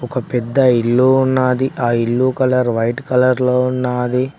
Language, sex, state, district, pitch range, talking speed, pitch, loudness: Telugu, male, Telangana, Mahabubabad, 125-130 Hz, 150 wpm, 125 Hz, -16 LUFS